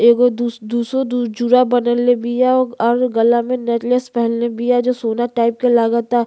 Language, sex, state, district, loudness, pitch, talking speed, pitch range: Bhojpuri, female, Uttar Pradesh, Gorakhpur, -16 LUFS, 240 Hz, 170 wpm, 235-245 Hz